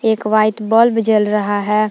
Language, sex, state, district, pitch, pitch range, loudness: Hindi, female, Jharkhand, Palamu, 215 Hz, 210-220 Hz, -15 LUFS